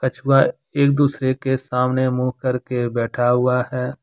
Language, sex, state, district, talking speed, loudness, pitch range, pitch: Hindi, male, Jharkhand, Deoghar, 150 wpm, -19 LUFS, 125-135 Hz, 130 Hz